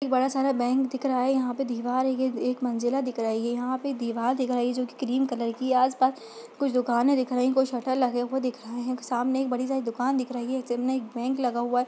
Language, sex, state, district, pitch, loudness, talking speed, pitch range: Hindi, female, Uttar Pradesh, Budaun, 255 Hz, -27 LUFS, 260 wpm, 245-260 Hz